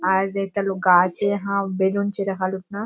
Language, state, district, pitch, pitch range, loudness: Surjapuri, Bihar, Kishanganj, 195 Hz, 190-200 Hz, -21 LUFS